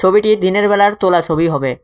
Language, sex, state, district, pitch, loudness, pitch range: Bengali, male, West Bengal, Cooch Behar, 185 Hz, -13 LUFS, 165-205 Hz